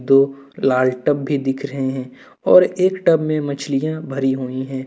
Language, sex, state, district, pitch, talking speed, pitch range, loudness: Hindi, male, Jharkhand, Deoghar, 135 Hz, 185 wpm, 130-150 Hz, -18 LUFS